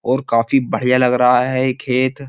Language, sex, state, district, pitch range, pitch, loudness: Hindi, male, Uttar Pradesh, Jyotiba Phule Nagar, 125-130 Hz, 125 Hz, -16 LUFS